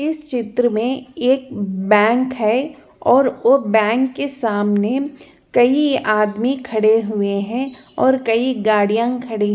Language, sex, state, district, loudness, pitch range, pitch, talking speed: Hindi, female, Chhattisgarh, Jashpur, -17 LUFS, 215-265 Hz, 240 Hz, 130 wpm